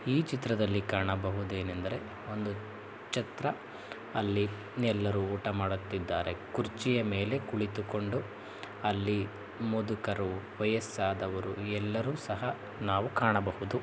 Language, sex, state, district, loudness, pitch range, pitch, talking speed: Kannada, male, Karnataka, Shimoga, -33 LUFS, 100-110 Hz, 105 Hz, 90 wpm